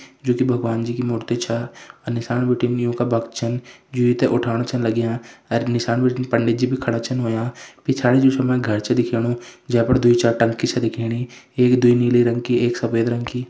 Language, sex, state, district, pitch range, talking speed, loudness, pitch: Hindi, male, Uttarakhand, Tehri Garhwal, 115-125 Hz, 220 wpm, -20 LUFS, 120 Hz